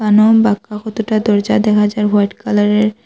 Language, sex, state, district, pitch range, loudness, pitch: Bengali, female, Assam, Hailakandi, 210-215 Hz, -14 LUFS, 210 Hz